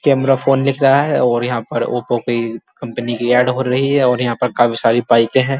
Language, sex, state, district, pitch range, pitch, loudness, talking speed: Hindi, male, Uttar Pradesh, Muzaffarnagar, 120-135 Hz, 125 Hz, -15 LUFS, 245 wpm